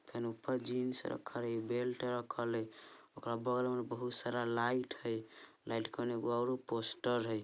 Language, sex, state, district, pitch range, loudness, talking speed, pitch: Bajjika, male, Bihar, Vaishali, 115-125 Hz, -38 LUFS, 175 wpm, 120 Hz